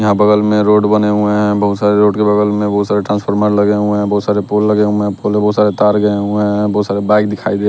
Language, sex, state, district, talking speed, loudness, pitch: Hindi, male, Bihar, West Champaran, 295 wpm, -13 LUFS, 105 Hz